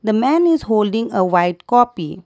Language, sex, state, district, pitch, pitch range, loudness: English, female, Assam, Kamrup Metropolitan, 215 Hz, 180-245 Hz, -16 LUFS